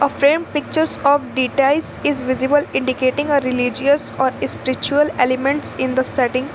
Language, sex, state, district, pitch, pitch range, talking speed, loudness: English, female, Jharkhand, Garhwa, 275 Hz, 260-290 Hz, 145 wpm, -18 LUFS